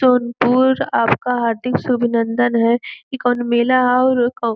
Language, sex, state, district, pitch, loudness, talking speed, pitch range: Bhojpuri, female, Uttar Pradesh, Gorakhpur, 245 Hz, -17 LUFS, 145 wpm, 240-255 Hz